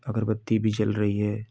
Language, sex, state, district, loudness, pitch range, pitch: Bhojpuri, male, Uttar Pradesh, Ghazipur, -26 LUFS, 105-110 Hz, 110 Hz